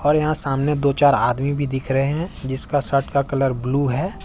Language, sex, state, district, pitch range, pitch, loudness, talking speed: Hindi, male, Jharkhand, Ranchi, 135-145 Hz, 140 Hz, -17 LUFS, 225 wpm